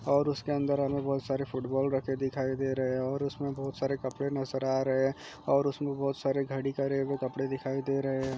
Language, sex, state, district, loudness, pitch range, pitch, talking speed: Hindi, male, Chhattisgarh, Jashpur, -31 LUFS, 135-140 Hz, 135 Hz, 245 wpm